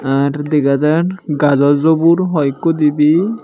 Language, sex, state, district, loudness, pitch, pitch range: Chakma, male, Tripura, Unakoti, -14 LUFS, 150 Hz, 145-165 Hz